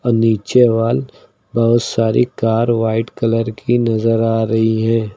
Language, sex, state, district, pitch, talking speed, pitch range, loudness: Hindi, male, Uttar Pradesh, Lucknow, 115 Hz, 140 wpm, 110-115 Hz, -16 LUFS